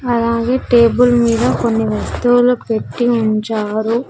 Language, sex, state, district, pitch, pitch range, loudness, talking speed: Telugu, female, Andhra Pradesh, Sri Satya Sai, 235 Hz, 225-245 Hz, -15 LUFS, 100 wpm